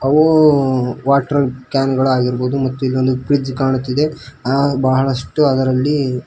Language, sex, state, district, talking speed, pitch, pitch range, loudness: Kannada, male, Karnataka, Koppal, 105 wpm, 135 Hz, 130-140 Hz, -16 LUFS